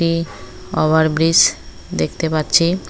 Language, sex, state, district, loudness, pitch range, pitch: Bengali, female, West Bengal, Cooch Behar, -16 LUFS, 155-165 Hz, 160 Hz